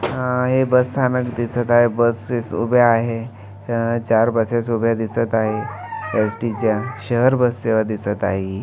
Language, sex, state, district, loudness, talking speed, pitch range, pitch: Marathi, male, Maharashtra, Aurangabad, -19 LUFS, 145 wpm, 110-120 Hz, 115 Hz